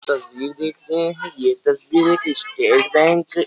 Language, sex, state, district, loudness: Hindi, male, Uttar Pradesh, Jyotiba Phule Nagar, -18 LUFS